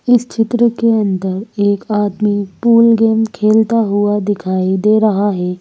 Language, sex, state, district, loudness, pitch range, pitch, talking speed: Hindi, female, Madhya Pradesh, Bhopal, -14 LUFS, 200-225 Hz, 210 Hz, 150 wpm